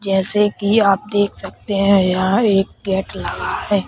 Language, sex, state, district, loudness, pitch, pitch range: Hindi, male, Madhya Pradesh, Bhopal, -17 LUFS, 200 Hz, 195-205 Hz